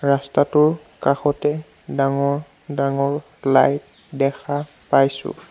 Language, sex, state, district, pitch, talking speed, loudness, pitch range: Assamese, male, Assam, Sonitpur, 140 Hz, 75 wpm, -20 LUFS, 140-150 Hz